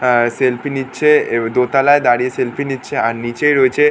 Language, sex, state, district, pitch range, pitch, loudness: Bengali, male, West Bengal, North 24 Parganas, 120-140 Hz, 130 Hz, -15 LUFS